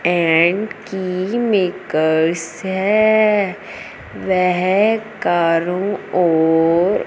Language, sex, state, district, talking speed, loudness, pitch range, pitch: Hindi, female, Punjab, Fazilka, 60 wpm, -17 LUFS, 170-205 Hz, 185 Hz